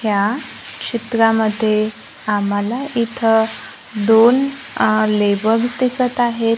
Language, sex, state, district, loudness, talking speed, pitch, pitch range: Marathi, female, Maharashtra, Gondia, -17 LUFS, 80 wpm, 225 Hz, 215-240 Hz